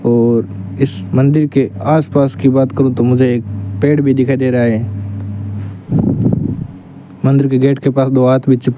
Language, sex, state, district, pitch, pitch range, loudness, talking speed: Hindi, male, Rajasthan, Bikaner, 130 Hz, 105-135 Hz, -14 LUFS, 180 wpm